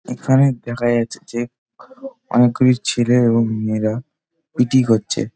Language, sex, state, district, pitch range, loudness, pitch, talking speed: Bengali, male, West Bengal, Dakshin Dinajpur, 115-130 Hz, -17 LUFS, 120 Hz, 145 wpm